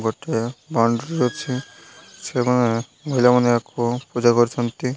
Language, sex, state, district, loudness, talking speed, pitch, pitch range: Odia, male, Odisha, Malkangiri, -21 LUFS, 95 wpm, 125 Hz, 120-125 Hz